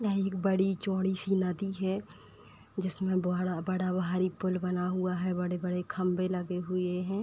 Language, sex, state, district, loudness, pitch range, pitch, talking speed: Hindi, female, Uttar Pradesh, Etah, -31 LUFS, 180-190 Hz, 185 Hz, 150 wpm